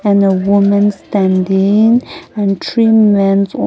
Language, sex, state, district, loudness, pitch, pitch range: English, female, Nagaland, Kohima, -12 LUFS, 200 Hz, 195-215 Hz